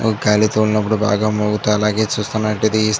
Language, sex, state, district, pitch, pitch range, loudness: Telugu, male, Andhra Pradesh, Chittoor, 110 Hz, 105-110 Hz, -17 LUFS